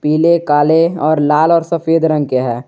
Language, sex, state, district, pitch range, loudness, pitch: Hindi, male, Jharkhand, Garhwa, 150-165 Hz, -13 LUFS, 155 Hz